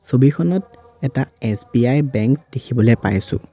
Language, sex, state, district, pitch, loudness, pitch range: Assamese, male, Assam, Sonitpur, 130 Hz, -18 LUFS, 110-145 Hz